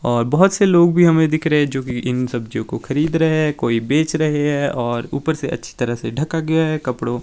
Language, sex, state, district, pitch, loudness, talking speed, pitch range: Hindi, male, Himachal Pradesh, Shimla, 145 Hz, -18 LUFS, 255 wpm, 120-160 Hz